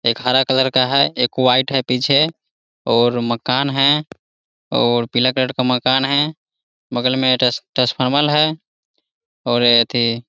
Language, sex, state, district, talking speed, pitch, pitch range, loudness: Hindi, male, Bihar, Muzaffarpur, 150 wpm, 130 Hz, 120-140 Hz, -16 LUFS